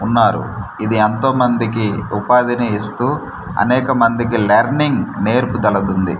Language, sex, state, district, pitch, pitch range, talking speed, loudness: Telugu, male, Andhra Pradesh, Manyam, 115 Hz, 105-125 Hz, 85 wpm, -16 LUFS